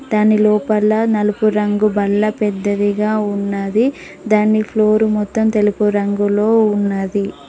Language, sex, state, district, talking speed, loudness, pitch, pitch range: Telugu, female, Telangana, Mahabubabad, 105 wpm, -16 LUFS, 210 Hz, 205-215 Hz